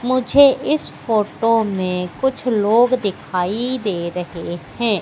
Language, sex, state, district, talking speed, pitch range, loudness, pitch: Hindi, female, Madhya Pradesh, Katni, 120 wpm, 185-250 Hz, -18 LUFS, 220 Hz